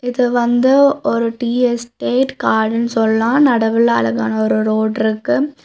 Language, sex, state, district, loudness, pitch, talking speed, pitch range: Tamil, female, Tamil Nadu, Nilgiris, -15 LUFS, 235 Hz, 125 wpm, 220-250 Hz